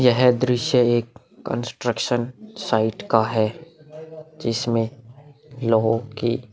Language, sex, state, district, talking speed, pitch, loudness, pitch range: Hindi, male, Bihar, Vaishali, 100 wpm, 120 Hz, -22 LUFS, 115-145 Hz